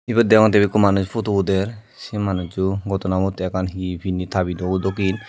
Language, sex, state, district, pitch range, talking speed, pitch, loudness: Chakma, male, Tripura, Dhalai, 95-105 Hz, 180 wpm, 95 Hz, -20 LUFS